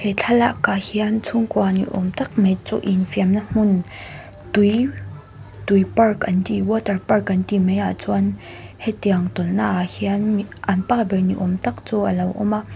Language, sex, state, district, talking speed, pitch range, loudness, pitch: Mizo, female, Mizoram, Aizawl, 195 wpm, 185-215 Hz, -20 LUFS, 200 Hz